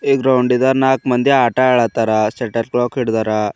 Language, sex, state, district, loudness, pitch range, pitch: Kannada, male, Karnataka, Bidar, -15 LUFS, 115-130 Hz, 125 Hz